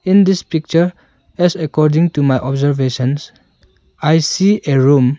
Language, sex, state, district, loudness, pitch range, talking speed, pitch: English, male, Arunachal Pradesh, Longding, -15 LUFS, 140-175 Hz, 140 wpm, 155 Hz